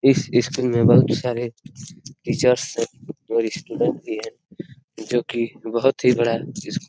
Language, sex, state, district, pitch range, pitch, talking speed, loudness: Hindi, male, Bihar, Darbhanga, 115-130 Hz, 120 Hz, 140 wpm, -21 LUFS